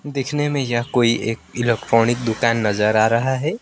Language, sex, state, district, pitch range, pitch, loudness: Hindi, male, West Bengal, Alipurduar, 115-130 Hz, 120 Hz, -19 LUFS